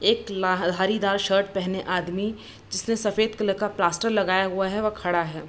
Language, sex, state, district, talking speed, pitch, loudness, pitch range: Hindi, female, Bihar, Gopalganj, 195 wpm, 195 Hz, -24 LUFS, 185-210 Hz